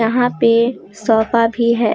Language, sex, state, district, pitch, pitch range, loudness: Hindi, female, Jharkhand, Deoghar, 230 Hz, 225-235 Hz, -15 LUFS